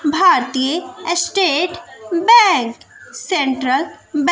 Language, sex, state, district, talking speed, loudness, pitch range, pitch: Hindi, female, Bihar, West Champaran, 70 wpm, -16 LUFS, 270-370 Hz, 340 Hz